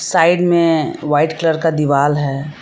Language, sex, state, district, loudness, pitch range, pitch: Hindi, female, Jharkhand, Palamu, -15 LUFS, 145-165 Hz, 155 Hz